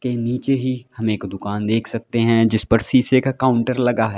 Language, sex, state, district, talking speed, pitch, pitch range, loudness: Hindi, male, Uttar Pradesh, Lalitpur, 230 wpm, 115 Hz, 110-130 Hz, -19 LUFS